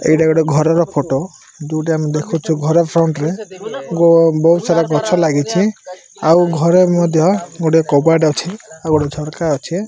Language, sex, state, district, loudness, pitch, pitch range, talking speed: Odia, male, Odisha, Malkangiri, -14 LUFS, 165 Hz, 155-170 Hz, 160 wpm